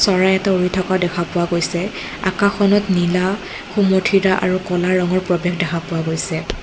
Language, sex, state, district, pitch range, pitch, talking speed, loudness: Assamese, female, Assam, Kamrup Metropolitan, 175-190 Hz, 185 Hz, 155 wpm, -18 LUFS